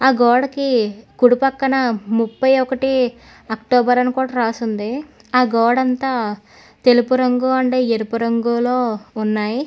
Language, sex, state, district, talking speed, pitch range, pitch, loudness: Telugu, female, Telangana, Hyderabad, 105 wpm, 230-260 Hz, 245 Hz, -17 LUFS